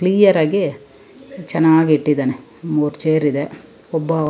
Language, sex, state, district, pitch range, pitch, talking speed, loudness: Kannada, female, Karnataka, Shimoga, 150-165 Hz, 155 Hz, 125 wpm, -17 LUFS